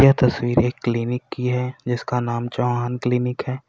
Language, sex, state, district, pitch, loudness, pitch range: Hindi, male, Uttar Pradesh, Lalitpur, 125 Hz, -22 LUFS, 120-125 Hz